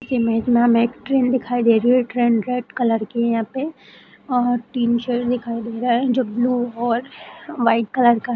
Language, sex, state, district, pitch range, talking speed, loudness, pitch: Hindi, female, Bihar, Saharsa, 230-250 Hz, 215 wpm, -19 LUFS, 240 Hz